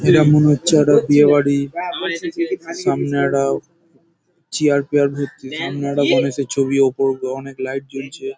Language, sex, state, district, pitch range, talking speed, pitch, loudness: Bengali, male, West Bengal, Paschim Medinipur, 135-150 Hz, 135 wpm, 140 Hz, -17 LUFS